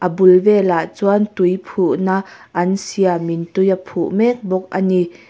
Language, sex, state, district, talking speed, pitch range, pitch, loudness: Mizo, female, Mizoram, Aizawl, 145 wpm, 180-195 Hz, 190 Hz, -16 LUFS